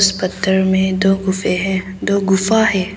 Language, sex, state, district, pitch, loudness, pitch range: Hindi, female, Arunachal Pradesh, Papum Pare, 190 Hz, -16 LUFS, 190-195 Hz